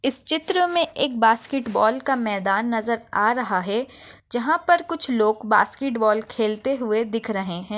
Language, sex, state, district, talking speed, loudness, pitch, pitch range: Hindi, female, Maharashtra, Nagpur, 155 wpm, -22 LUFS, 230 Hz, 215-270 Hz